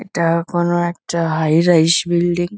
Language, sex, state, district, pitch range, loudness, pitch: Bengali, female, West Bengal, Kolkata, 165-175 Hz, -16 LUFS, 170 Hz